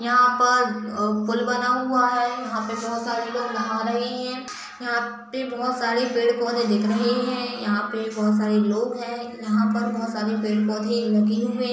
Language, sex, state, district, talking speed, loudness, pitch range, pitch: Hindi, female, Uttar Pradesh, Budaun, 195 wpm, -23 LUFS, 220-245 Hz, 235 Hz